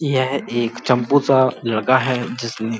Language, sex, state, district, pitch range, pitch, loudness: Hindi, male, Uttar Pradesh, Muzaffarnagar, 115-130 Hz, 125 Hz, -19 LUFS